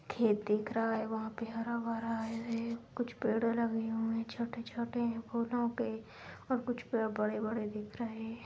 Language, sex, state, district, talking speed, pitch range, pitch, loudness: Hindi, female, Bihar, Jahanabad, 155 wpm, 225-235 Hz, 230 Hz, -36 LUFS